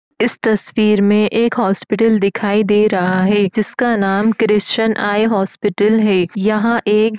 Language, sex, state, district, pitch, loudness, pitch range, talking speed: Hindi, female, Uttar Pradesh, Etah, 210 Hz, -15 LUFS, 200-220 Hz, 150 wpm